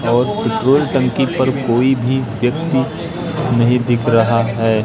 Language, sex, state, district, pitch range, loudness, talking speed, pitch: Hindi, male, Madhya Pradesh, Katni, 115-135 Hz, -16 LUFS, 135 wpm, 125 Hz